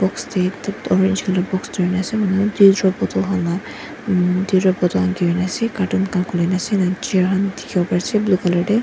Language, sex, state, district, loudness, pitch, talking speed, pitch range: Nagamese, female, Nagaland, Dimapur, -18 LUFS, 185 Hz, 225 wpm, 180-195 Hz